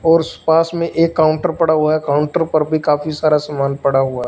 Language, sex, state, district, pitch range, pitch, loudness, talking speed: Hindi, male, Punjab, Fazilka, 145-165 Hz, 155 Hz, -16 LUFS, 240 wpm